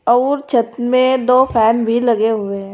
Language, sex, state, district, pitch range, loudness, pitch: Hindi, female, Uttar Pradesh, Saharanpur, 225-255 Hz, -15 LUFS, 240 Hz